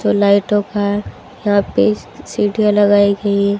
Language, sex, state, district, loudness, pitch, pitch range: Hindi, female, Haryana, Charkhi Dadri, -15 LUFS, 205 Hz, 200-205 Hz